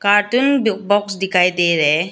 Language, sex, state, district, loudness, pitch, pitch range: Hindi, female, Arunachal Pradesh, Lower Dibang Valley, -16 LUFS, 200 Hz, 180-205 Hz